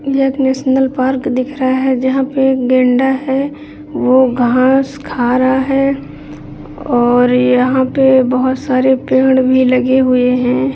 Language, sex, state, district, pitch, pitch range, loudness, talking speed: Hindi, female, Bihar, Bhagalpur, 260 Hz, 250-265 Hz, -13 LUFS, 150 wpm